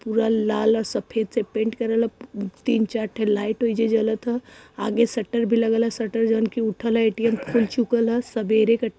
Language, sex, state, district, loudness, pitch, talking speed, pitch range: Hindi, female, Uttar Pradesh, Varanasi, -22 LUFS, 225 Hz, 215 wpm, 220-235 Hz